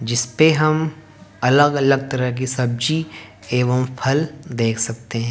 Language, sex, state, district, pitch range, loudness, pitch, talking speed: Hindi, male, Haryana, Jhajjar, 120-155 Hz, -19 LUFS, 130 Hz, 135 wpm